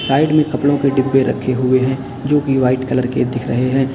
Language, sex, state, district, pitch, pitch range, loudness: Hindi, male, Uttar Pradesh, Lalitpur, 135 Hz, 130-140 Hz, -16 LUFS